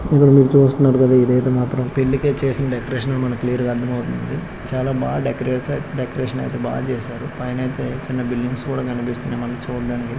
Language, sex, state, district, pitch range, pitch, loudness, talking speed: Telugu, male, Andhra Pradesh, Krishna, 125-135 Hz, 125 Hz, -19 LUFS, 170 wpm